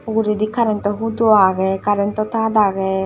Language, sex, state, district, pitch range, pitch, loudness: Chakma, female, Tripura, Dhalai, 195-220 Hz, 210 Hz, -17 LUFS